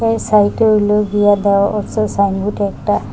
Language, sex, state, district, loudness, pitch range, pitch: Bengali, female, Assam, Hailakandi, -14 LUFS, 200-215 Hz, 205 Hz